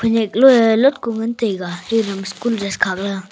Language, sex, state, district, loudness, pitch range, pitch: Wancho, male, Arunachal Pradesh, Longding, -17 LUFS, 195-230 Hz, 225 Hz